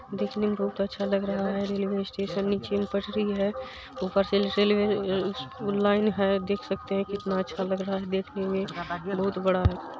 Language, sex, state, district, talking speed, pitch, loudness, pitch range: Maithili, female, Bihar, Supaul, 180 wpm, 195 Hz, -28 LUFS, 195-200 Hz